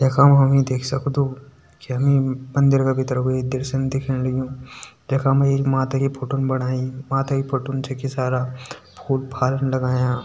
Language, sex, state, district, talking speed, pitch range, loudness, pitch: Hindi, male, Uttarakhand, Tehri Garhwal, 175 wpm, 130-135 Hz, -21 LUFS, 135 Hz